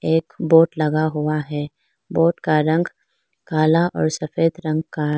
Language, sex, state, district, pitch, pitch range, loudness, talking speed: Hindi, female, Arunachal Pradesh, Lower Dibang Valley, 155 Hz, 155-165 Hz, -20 LUFS, 150 wpm